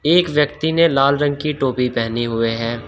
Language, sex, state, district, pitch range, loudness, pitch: Hindi, male, Uttar Pradesh, Shamli, 115-150 Hz, -18 LUFS, 140 Hz